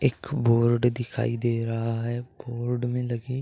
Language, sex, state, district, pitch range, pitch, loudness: Hindi, male, Uttar Pradesh, Gorakhpur, 115-125 Hz, 120 Hz, -26 LUFS